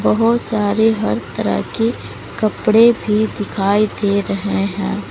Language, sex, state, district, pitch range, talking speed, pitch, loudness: Hindi, female, Uttar Pradesh, Lalitpur, 200-225 Hz, 130 wpm, 210 Hz, -17 LUFS